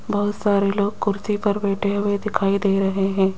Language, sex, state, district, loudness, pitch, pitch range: Hindi, female, Rajasthan, Jaipur, -21 LUFS, 200 Hz, 195-205 Hz